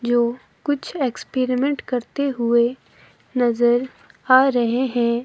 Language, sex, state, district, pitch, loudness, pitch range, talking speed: Hindi, female, Himachal Pradesh, Shimla, 250 Hz, -20 LUFS, 240-265 Hz, 105 wpm